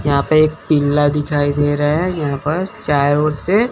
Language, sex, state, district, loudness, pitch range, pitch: Hindi, male, Chandigarh, Chandigarh, -16 LUFS, 145-155 Hz, 150 Hz